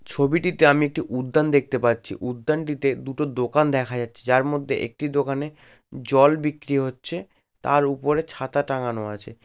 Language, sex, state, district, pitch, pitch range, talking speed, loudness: Bengali, male, West Bengal, Malda, 140 Hz, 125-150 Hz, 145 wpm, -23 LUFS